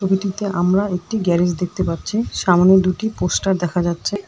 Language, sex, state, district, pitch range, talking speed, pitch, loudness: Bengali, female, West Bengal, Alipurduar, 175-200 Hz, 155 wpm, 185 Hz, -18 LUFS